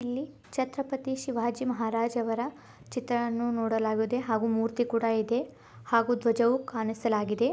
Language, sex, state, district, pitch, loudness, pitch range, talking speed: Kannada, female, Karnataka, Belgaum, 235 Hz, -29 LUFS, 225-250 Hz, 120 wpm